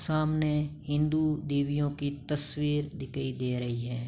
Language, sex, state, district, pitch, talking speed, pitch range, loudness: Hindi, male, Uttar Pradesh, Hamirpur, 145 Hz, 130 wpm, 135-150 Hz, -31 LUFS